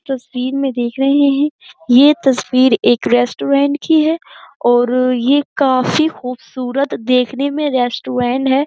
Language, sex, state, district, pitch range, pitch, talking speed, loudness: Hindi, female, Uttar Pradesh, Jyotiba Phule Nagar, 250-285 Hz, 265 Hz, 130 wpm, -15 LUFS